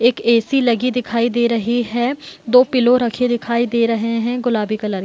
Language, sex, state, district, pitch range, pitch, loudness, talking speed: Hindi, female, Bihar, Gopalganj, 230-245 Hz, 235 Hz, -17 LUFS, 225 wpm